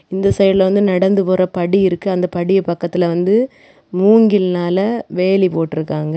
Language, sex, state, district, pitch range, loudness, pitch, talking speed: Tamil, female, Tamil Nadu, Kanyakumari, 175-195 Hz, -15 LUFS, 185 Hz, 135 wpm